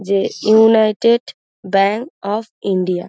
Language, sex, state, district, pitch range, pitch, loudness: Bengali, female, West Bengal, Dakshin Dinajpur, 195-220 Hz, 205 Hz, -16 LUFS